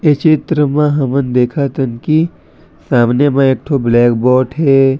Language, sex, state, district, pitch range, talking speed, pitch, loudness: Chhattisgarhi, male, Chhattisgarh, Raigarh, 125-150 Hz, 155 wpm, 135 Hz, -13 LUFS